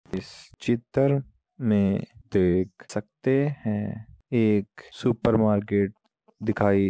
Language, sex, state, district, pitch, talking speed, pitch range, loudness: Hindi, male, Uttar Pradesh, Muzaffarnagar, 105 Hz, 95 wpm, 100-120 Hz, -25 LUFS